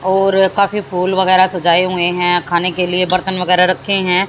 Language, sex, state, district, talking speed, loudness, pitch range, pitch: Hindi, female, Haryana, Jhajjar, 195 wpm, -14 LUFS, 180-190 Hz, 185 Hz